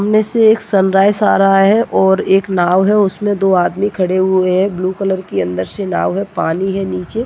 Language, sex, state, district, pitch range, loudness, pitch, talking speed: Hindi, female, Chhattisgarh, Jashpur, 185-205 Hz, -14 LUFS, 195 Hz, 225 wpm